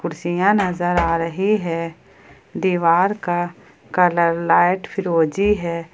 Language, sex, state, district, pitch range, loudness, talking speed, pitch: Hindi, female, Jharkhand, Ranchi, 170-190 Hz, -19 LUFS, 110 wpm, 175 Hz